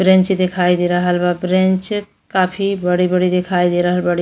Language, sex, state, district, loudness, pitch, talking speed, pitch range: Bhojpuri, female, Uttar Pradesh, Deoria, -16 LUFS, 180 Hz, 185 wpm, 180-185 Hz